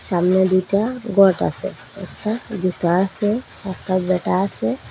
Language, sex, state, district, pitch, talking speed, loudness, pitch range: Bengali, female, Assam, Hailakandi, 190 Hz, 135 wpm, -20 LUFS, 185-205 Hz